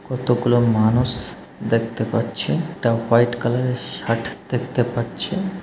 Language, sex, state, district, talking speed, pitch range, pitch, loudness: Bengali, male, West Bengal, North 24 Parganas, 105 wpm, 115-125 Hz, 120 Hz, -21 LUFS